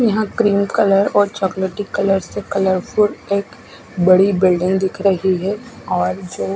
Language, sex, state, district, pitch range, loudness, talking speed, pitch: Hindi, female, Odisha, Khordha, 185-205 Hz, -17 LUFS, 145 wpm, 195 Hz